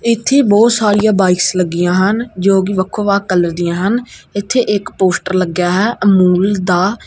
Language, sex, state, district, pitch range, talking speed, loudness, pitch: Punjabi, female, Punjab, Kapurthala, 185-215 Hz, 170 wpm, -13 LUFS, 195 Hz